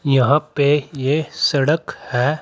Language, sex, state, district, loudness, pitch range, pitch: Hindi, male, Uttar Pradesh, Saharanpur, -18 LUFS, 135-155 Hz, 145 Hz